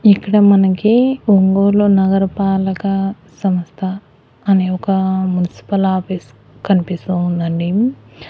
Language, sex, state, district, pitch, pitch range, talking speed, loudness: Telugu, female, Andhra Pradesh, Annamaya, 190 Hz, 180-200 Hz, 80 wpm, -15 LUFS